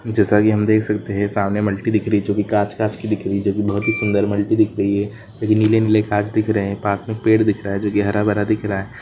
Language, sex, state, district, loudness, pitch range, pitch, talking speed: Hindi, male, Rajasthan, Churu, -19 LUFS, 100-110 Hz, 105 Hz, 315 wpm